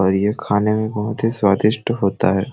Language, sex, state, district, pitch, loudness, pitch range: Sadri, male, Chhattisgarh, Jashpur, 105 Hz, -19 LUFS, 100-110 Hz